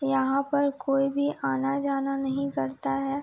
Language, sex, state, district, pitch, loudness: Hindi, female, Uttar Pradesh, Etah, 275 Hz, -27 LUFS